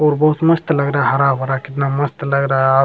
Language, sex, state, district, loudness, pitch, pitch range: Hindi, male, Bihar, Jamui, -16 LUFS, 140 Hz, 135-150 Hz